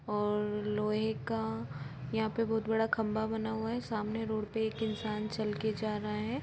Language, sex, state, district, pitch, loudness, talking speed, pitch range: Hindi, female, Bihar, Sitamarhi, 215 Hz, -34 LUFS, 215 wpm, 210-220 Hz